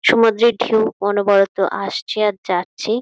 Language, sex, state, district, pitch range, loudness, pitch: Bengali, female, West Bengal, Jhargram, 195-225 Hz, -17 LUFS, 210 Hz